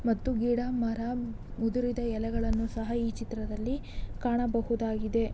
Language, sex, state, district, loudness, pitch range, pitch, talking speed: Kannada, female, Karnataka, Chamarajanagar, -31 LUFS, 225-240 Hz, 230 Hz, 100 wpm